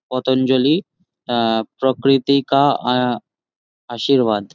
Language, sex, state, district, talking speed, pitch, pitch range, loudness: Bengali, male, West Bengal, Jhargram, 65 wpm, 130 Hz, 120-140 Hz, -17 LUFS